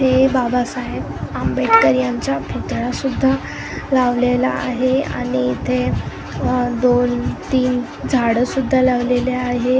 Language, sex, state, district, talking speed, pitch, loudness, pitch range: Marathi, female, Maharashtra, Gondia, 100 wpm, 250 Hz, -18 LUFS, 240-255 Hz